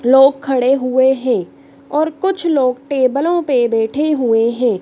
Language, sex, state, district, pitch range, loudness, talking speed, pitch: Hindi, female, Madhya Pradesh, Dhar, 250-295 Hz, -15 LUFS, 150 wpm, 265 Hz